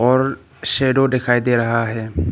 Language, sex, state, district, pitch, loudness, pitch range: Hindi, male, Arunachal Pradesh, Papum Pare, 120 Hz, -18 LUFS, 115-130 Hz